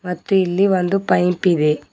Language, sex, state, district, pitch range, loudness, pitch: Kannada, female, Karnataka, Bidar, 175-190 Hz, -17 LUFS, 180 Hz